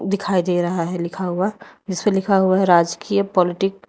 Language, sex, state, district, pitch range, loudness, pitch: Hindi, female, Uttar Pradesh, Lalitpur, 175-200 Hz, -19 LUFS, 190 Hz